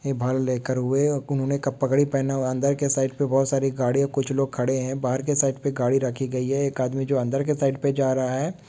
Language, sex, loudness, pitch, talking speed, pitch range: Hindi, male, -24 LUFS, 135 Hz, 270 wpm, 130-140 Hz